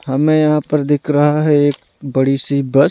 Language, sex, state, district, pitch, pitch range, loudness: Hindi, male, Punjab, Pathankot, 145 Hz, 135-150 Hz, -15 LUFS